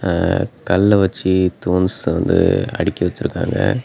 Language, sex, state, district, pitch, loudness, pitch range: Tamil, male, Tamil Nadu, Namakkal, 95 Hz, -17 LUFS, 90-105 Hz